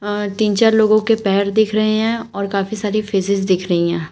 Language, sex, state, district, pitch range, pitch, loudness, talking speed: Hindi, female, Uttar Pradesh, Shamli, 195-215 Hz, 205 Hz, -17 LUFS, 220 wpm